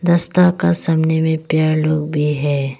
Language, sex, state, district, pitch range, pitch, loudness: Hindi, female, Arunachal Pradesh, Longding, 150-170 Hz, 160 Hz, -16 LUFS